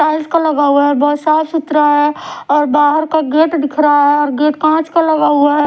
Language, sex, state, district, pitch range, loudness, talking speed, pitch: Hindi, female, Odisha, Sambalpur, 290-315 Hz, -12 LUFS, 245 wpm, 300 Hz